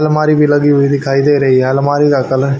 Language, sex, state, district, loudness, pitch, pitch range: Hindi, male, Haryana, Charkhi Dadri, -11 LUFS, 140 Hz, 135-145 Hz